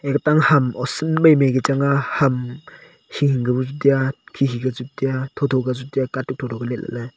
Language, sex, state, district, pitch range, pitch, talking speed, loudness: Wancho, male, Arunachal Pradesh, Longding, 125-140 Hz, 135 Hz, 245 wpm, -20 LUFS